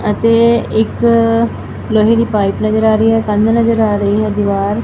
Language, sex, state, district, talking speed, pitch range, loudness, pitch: Punjabi, female, Punjab, Fazilka, 200 wpm, 210-230 Hz, -13 LUFS, 220 Hz